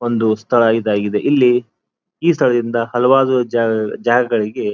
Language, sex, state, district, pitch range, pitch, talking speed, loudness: Kannada, male, Karnataka, Dharwad, 110-125 Hz, 120 Hz, 115 wpm, -16 LUFS